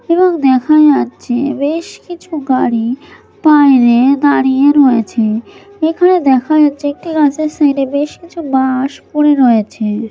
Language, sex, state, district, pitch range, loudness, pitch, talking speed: Bengali, female, West Bengal, Malda, 260-310 Hz, -12 LUFS, 285 Hz, 120 wpm